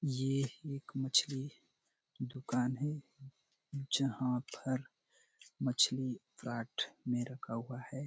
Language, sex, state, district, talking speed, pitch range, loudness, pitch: Hindi, male, Chhattisgarh, Bastar, 95 wpm, 125-140 Hz, -37 LUFS, 130 Hz